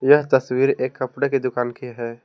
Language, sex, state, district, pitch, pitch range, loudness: Hindi, male, Jharkhand, Palamu, 130 Hz, 125-135 Hz, -21 LUFS